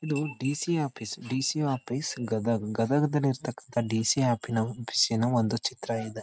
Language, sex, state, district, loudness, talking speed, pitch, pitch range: Kannada, male, Karnataka, Dharwad, -28 LUFS, 145 wpm, 120 Hz, 115-140 Hz